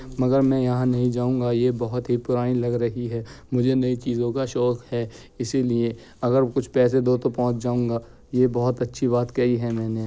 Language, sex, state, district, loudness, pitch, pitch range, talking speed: Hindi, male, Uttar Pradesh, Jyotiba Phule Nagar, -23 LUFS, 125 Hz, 120-125 Hz, 195 wpm